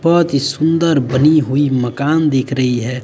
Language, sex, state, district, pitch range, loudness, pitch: Hindi, male, Bihar, West Champaran, 130-155 Hz, -14 LUFS, 140 Hz